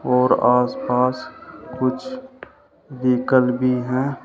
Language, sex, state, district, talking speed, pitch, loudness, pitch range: Hindi, male, Uttar Pradesh, Shamli, 85 wpm, 130 Hz, -19 LUFS, 125-135 Hz